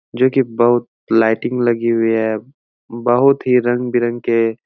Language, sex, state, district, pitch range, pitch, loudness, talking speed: Hindi, male, Uttar Pradesh, Etah, 115-125 Hz, 120 Hz, -16 LUFS, 165 wpm